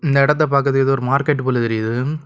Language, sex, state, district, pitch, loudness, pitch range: Tamil, male, Tamil Nadu, Kanyakumari, 140 Hz, -17 LUFS, 130-145 Hz